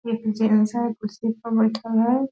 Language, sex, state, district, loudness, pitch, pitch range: Hindi, female, Bihar, Purnia, -22 LUFS, 225 Hz, 220-230 Hz